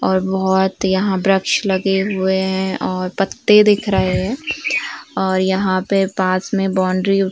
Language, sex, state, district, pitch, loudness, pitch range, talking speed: Hindi, female, Uttar Pradesh, Varanasi, 190 Hz, -17 LUFS, 190-195 Hz, 155 wpm